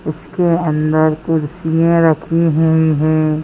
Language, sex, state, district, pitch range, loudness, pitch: Hindi, female, Madhya Pradesh, Bhopal, 155-165 Hz, -15 LUFS, 160 Hz